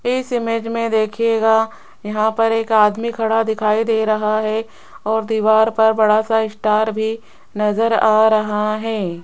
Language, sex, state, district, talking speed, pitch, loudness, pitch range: Hindi, female, Rajasthan, Jaipur, 155 wpm, 220 Hz, -17 LUFS, 215-225 Hz